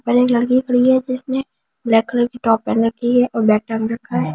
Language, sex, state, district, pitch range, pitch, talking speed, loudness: Hindi, female, Delhi, New Delhi, 225-255 Hz, 240 Hz, 260 wpm, -17 LUFS